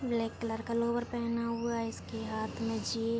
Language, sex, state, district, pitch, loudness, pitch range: Hindi, female, Jharkhand, Sahebganj, 230 Hz, -34 LUFS, 225-235 Hz